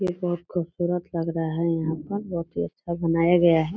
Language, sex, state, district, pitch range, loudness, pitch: Hindi, female, Bihar, Purnia, 165-175 Hz, -25 LUFS, 170 Hz